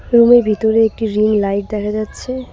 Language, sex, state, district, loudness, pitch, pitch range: Bengali, female, West Bengal, Cooch Behar, -15 LUFS, 215 Hz, 210-235 Hz